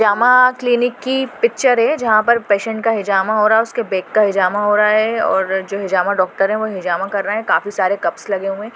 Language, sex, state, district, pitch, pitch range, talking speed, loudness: Hindi, female, Goa, North and South Goa, 210 Hz, 195-230 Hz, 245 wpm, -16 LUFS